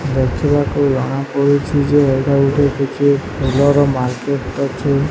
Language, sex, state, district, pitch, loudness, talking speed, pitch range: Odia, male, Odisha, Sambalpur, 140 Hz, -16 LUFS, 115 wpm, 135-145 Hz